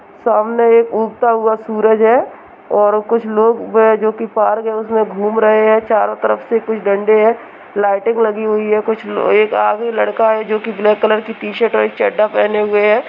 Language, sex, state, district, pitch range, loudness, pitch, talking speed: Hindi, male, Uttar Pradesh, Hamirpur, 210-225 Hz, -14 LUFS, 220 Hz, 210 wpm